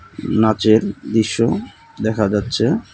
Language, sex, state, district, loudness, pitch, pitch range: Bengali, male, West Bengal, Cooch Behar, -18 LUFS, 110 Hz, 105-110 Hz